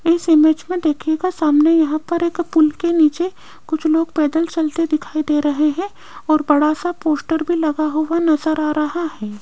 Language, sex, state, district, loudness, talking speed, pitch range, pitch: Hindi, female, Rajasthan, Jaipur, -17 LUFS, 195 wpm, 305-335 Hz, 315 Hz